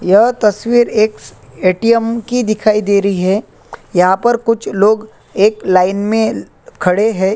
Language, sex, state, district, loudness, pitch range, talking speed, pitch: Hindi, male, Chhattisgarh, Korba, -13 LUFS, 190-225 Hz, 145 wpm, 210 Hz